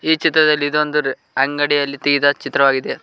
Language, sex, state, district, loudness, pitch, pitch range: Kannada, male, Karnataka, Koppal, -16 LUFS, 145 Hz, 140-150 Hz